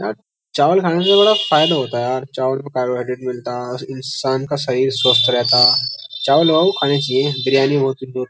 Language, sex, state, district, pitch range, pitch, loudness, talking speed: Hindi, male, Uttar Pradesh, Jyotiba Phule Nagar, 125-140 Hz, 130 Hz, -16 LUFS, 190 wpm